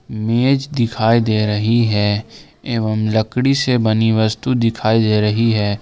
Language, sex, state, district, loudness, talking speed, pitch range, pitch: Hindi, male, Jharkhand, Ranchi, -16 LUFS, 145 wpm, 110-120 Hz, 110 Hz